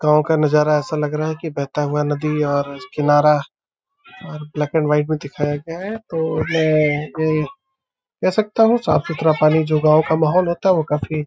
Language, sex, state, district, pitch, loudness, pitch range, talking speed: Hindi, male, Uttar Pradesh, Deoria, 155 Hz, -18 LUFS, 150-165 Hz, 205 wpm